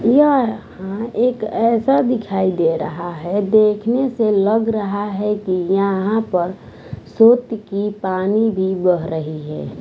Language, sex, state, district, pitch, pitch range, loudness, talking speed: Hindi, female, Bihar, West Champaran, 205 Hz, 185-225 Hz, -18 LUFS, 135 wpm